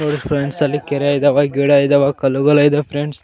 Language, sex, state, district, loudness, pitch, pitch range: Kannada, male, Karnataka, Raichur, -15 LUFS, 145 Hz, 140-145 Hz